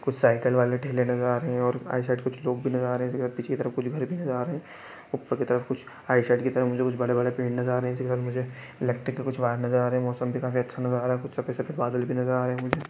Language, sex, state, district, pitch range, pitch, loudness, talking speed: Hindi, male, Chhattisgarh, Balrampur, 125-130 Hz, 125 Hz, -27 LUFS, 325 wpm